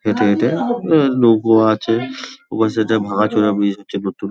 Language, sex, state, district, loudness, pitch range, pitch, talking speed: Bengali, male, West Bengal, Kolkata, -16 LUFS, 105-120 Hz, 110 Hz, 180 wpm